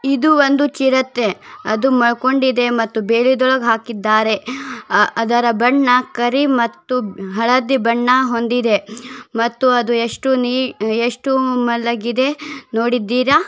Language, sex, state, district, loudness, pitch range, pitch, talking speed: Kannada, female, Karnataka, Bellary, -16 LUFS, 230-260 Hz, 245 Hz, 100 wpm